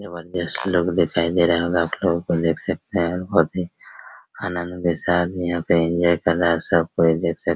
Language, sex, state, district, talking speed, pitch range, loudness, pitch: Hindi, male, Bihar, Araria, 230 wpm, 85-90 Hz, -21 LUFS, 85 Hz